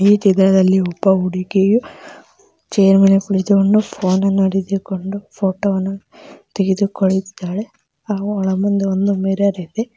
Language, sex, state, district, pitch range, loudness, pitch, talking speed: Kannada, female, Karnataka, Mysore, 190-200 Hz, -16 LUFS, 195 Hz, 100 wpm